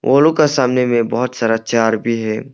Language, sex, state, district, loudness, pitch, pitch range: Hindi, male, Arunachal Pradesh, Longding, -15 LUFS, 120 Hz, 115-130 Hz